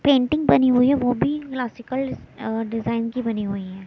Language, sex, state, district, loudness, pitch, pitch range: Hindi, female, Chhattisgarh, Raipur, -22 LUFS, 245 Hz, 225-265 Hz